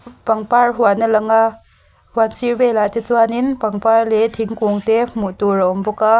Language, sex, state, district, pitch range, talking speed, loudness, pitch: Mizo, female, Mizoram, Aizawl, 215-230 Hz, 195 wpm, -16 LUFS, 225 Hz